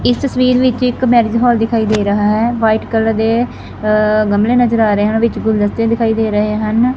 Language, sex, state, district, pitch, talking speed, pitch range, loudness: Punjabi, female, Punjab, Fazilka, 225 Hz, 205 wpm, 215-240 Hz, -13 LUFS